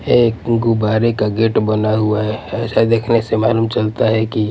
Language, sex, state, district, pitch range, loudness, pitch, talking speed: Hindi, male, Punjab, Pathankot, 110-115 Hz, -16 LUFS, 110 Hz, 185 wpm